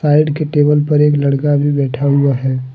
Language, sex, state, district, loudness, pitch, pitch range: Hindi, male, Jharkhand, Deoghar, -14 LUFS, 145 Hz, 140-150 Hz